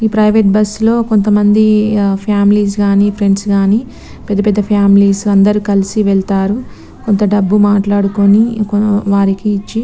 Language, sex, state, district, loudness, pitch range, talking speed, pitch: Telugu, female, Telangana, Nalgonda, -11 LUFS, 200-210 Hz, 135 wpm, 205 Hz